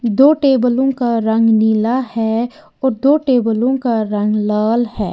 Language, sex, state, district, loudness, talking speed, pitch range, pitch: Hindi, female, Uttar Pradesh, Lalitpur, -15 LUFS, 150 wpm, 220-260 Hz, 235 Hz